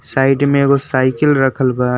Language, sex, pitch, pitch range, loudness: Bhojpuri, male, 135 Hz, 130-140 Hz, -14 LUFS